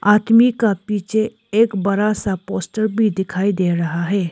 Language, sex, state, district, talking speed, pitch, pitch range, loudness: Hindi, female, Arunachal Pradesh, Lower Dibang Valley, 165 wpm, 205 Hz, 190-220 Hz, -18 LUFS